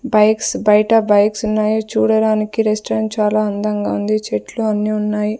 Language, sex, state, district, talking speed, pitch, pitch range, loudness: Telugu, female, Andhra Pradesh, Sri Satya Sai, 135 wpm, 215 Hz, 210-220 Hz, -16 LUFS